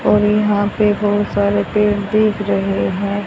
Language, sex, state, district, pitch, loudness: Hindi, female, Haryana, Charkhi Dadri, 205 Hz, -16 LUFS